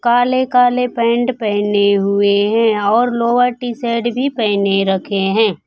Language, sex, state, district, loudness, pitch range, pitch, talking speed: Hindi, female, Bihar, Kaimur, -15 LUFS, 200-245 Hz, 230 Hz, 135 wpm